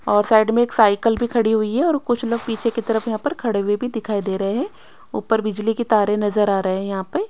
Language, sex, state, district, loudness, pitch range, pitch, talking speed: Hindi, female, Odisha, Sambalpur, -20 LUFS, 205-235 Hz, 220 Hz, 280 wpm